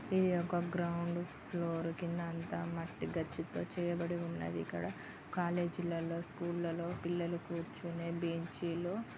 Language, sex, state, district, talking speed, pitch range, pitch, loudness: Telugu, female, Andhra Pradesh, Guntur, 120 wpm, 170-175 Hz, 170 Hz, -39 LUFS